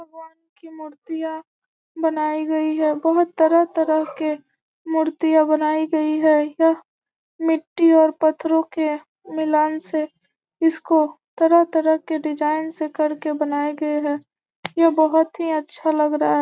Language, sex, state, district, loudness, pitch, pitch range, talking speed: Hindi, female, Bihar, Gopalganj, -20 LUFS, 315 Hz, 305-325 Hz, 140 wpm